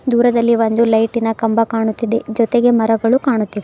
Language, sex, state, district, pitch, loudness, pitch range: Kannada, female, Karnataka, Bidar, 230 Hz, -15 LUFS, 225-235 Hz